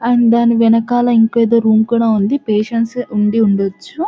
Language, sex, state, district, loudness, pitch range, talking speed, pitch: Telugu, female, Telangana, Nalgonda, -13 LUFS, 215-235 Hz, 175 wpm, 230 Hz